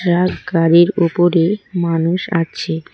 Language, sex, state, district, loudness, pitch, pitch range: Bengali, female, West Bengal, Cooch Behar, -15 LUFS, 170 Hz, 165-180 Hz